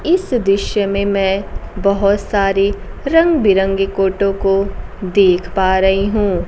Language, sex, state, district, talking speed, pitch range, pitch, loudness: Hindi, female, Bihar, Kaimur, 130 wpm, 195-205 Hz, 195 Hz, -15 LUFS